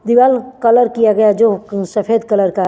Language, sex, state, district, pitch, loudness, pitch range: Hindi, female, Chandigarh, Chandigarh, 225 Hz, -13 LUFS, 205-235 Hz